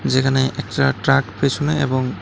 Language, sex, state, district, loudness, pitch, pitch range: Bengali, male, Tripura, West Tripura, -19 LUFS, 130 Hz, 125-140 Hz